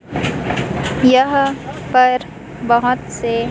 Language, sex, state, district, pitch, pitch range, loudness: Hindi, female, Chhattisgarh, Raipur, 250 Hz, 235-255 Hz, -16 LUFS